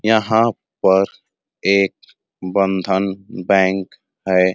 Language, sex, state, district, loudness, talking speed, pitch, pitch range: Hindi, male, Uttar Pradesh, Ghazipur, -18 LUFS, 80 wpm, 95 Hz, 95-100 Hz